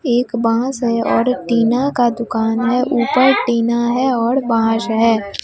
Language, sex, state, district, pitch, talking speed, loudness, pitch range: Hindi, female, Bihar, Katihar, 240 Hz, 155 wpm, -16 LUFS, 230-250 Hz